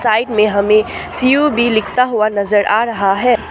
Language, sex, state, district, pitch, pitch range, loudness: Hindi, female, Assam, Sonitpur, 220 Hz, 210-245 Hz, -14 LUFS